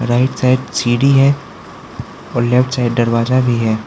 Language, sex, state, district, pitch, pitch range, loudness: Hindi, male, Arunachal Pradesh, Lower Dibang Valley, 125 Hz, 120-130 Hz, -14 LUFS